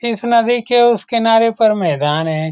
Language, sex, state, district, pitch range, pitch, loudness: Hindi, male, Bihar, Saran, 165-235 Hz, 225 Hz, -14 LUFS